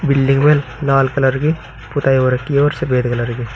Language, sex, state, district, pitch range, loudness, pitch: Hindi, male, Uttar Pradesh, Saharanpur, 125-145 Hz, -16 LUFS, 135 Hz